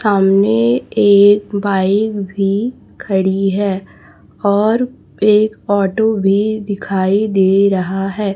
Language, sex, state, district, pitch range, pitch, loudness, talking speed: Hindi, female, Chhattisgarh, Raipur, 195-210 Hz, 200 Hz, -14 LUFS, 100 wpm